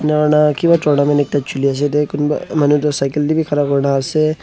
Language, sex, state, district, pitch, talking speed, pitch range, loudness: Nagamese, male, Nagaland, Dimapur, 145 Hz, 150 wpm, 145-150 Hz, -15 LUFS